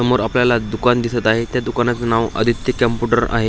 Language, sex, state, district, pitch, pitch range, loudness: Marathi, male, Maharashtra, Washim, 120 Hz, 115-120 Hz, -17 LUFS